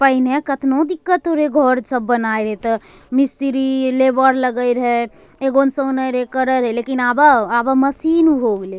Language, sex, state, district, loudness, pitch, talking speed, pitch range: Angika, female, Bihar, Bhagalpur, -16 LUFS, 260 Hz, 135 wpm, 245-275 Hz